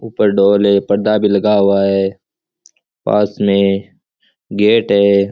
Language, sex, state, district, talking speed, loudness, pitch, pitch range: Rajasthani, male, Rajasthan, Churu, 135 wpm, -13 LUFS, 100 Hz, 100-105 Hz